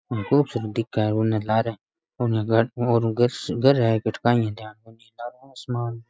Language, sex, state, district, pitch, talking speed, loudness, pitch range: Rajasthani, male, Rajasthan, Nagaur, 115 Hz, 100 wpm, -23 LUFS, 110-120 Hz